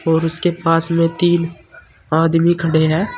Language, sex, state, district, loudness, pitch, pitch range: Hindi, male, Uttar Pradesh, Saharanpur, -16 LUFS, 165 Hz, 160-170 Hz